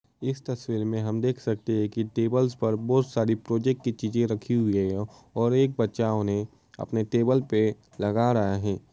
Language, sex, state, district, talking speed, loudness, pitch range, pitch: Hindi, male, Uttar Pradesh, Varanasi, 190 wpm, -26 LUFS, 110-125 Hz, 115 Hz